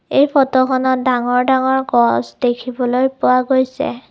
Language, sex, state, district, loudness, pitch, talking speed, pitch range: Assamese, female, Assam, Kamrup Metropolitan, -16 LUFS, 260 Hz, 115 wpm, 245-265 Hz